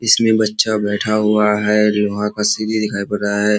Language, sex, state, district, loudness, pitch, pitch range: Hindi, male, Bihar, Kishanganj, -16 LUFS, 105 Hz, 105-110 Hz